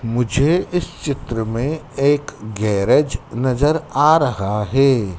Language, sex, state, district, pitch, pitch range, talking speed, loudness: Hindi, male, Madhya Pradesh, Dhar, 135 Hz, 110-145 Hz, 115 wpm, -18 LUFS